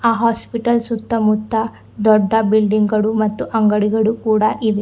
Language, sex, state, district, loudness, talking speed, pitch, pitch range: Kannada, female, Karnataka, Bidar, -17 LUFS, 135 wpm, 220 Hz, 215-230 Hz